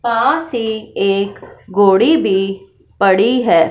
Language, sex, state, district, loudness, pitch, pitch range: Hindi, female, Punjab, Fazilka, -15 LUFS, 205 Hz, 195-235 Hz